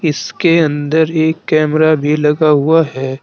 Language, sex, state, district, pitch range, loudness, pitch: Hindi, male, Uttar Pradesh, Saharanpur, 150-160 Hz, -13 LUFS, 155 Hz